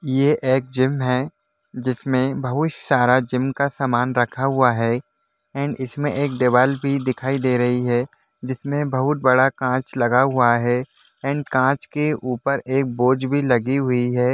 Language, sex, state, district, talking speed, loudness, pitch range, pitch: Hindi, male, Jharkhand, Sahebganj, 165 wpm, -20 LUFS, 125-140 Hz, 130 Hz